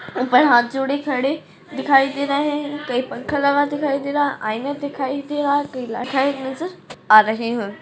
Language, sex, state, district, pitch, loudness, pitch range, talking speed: Hindi, female, Uttarakhand, Tehri Garhwal, 275 Hz, -19 LUFS, 250-285 Hz, 185 wpm